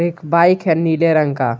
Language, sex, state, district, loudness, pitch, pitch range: Hindi, male, Jharkhand, Garhwa, -15 LUFS, 165 Hz, 150-170 Hz